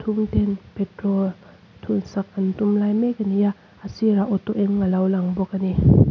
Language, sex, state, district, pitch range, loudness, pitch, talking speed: Mizo, female, Mizoram, Aizawl, 190-205 Hz, -22 LUFS, 200 Hz, 205 wpm